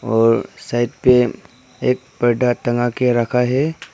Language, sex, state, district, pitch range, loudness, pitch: Hindi, male, Arunachal Pradesh, Papum Pare, 120-125 Hz, -18 LUFS, 125 Hz